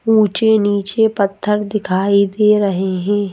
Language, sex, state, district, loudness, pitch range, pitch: Hindi, female, Madhya Pradesh, Bhopal, -15 LUFS, 195-210 Hz, 205 Hz